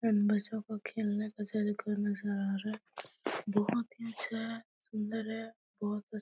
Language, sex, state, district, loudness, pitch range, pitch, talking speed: Hindi, female, Uttar Pradesh, Etah, -36 LUFS, 210-225 Hz, 215 Hz, 125 wpm